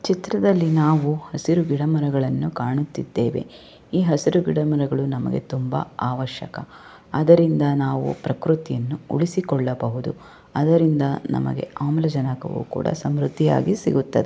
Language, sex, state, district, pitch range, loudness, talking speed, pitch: Kannada, female, Karnataka, Chamarajanagar, 135-160 Hz, -22 LUFS, 95 wpm, 150 Hz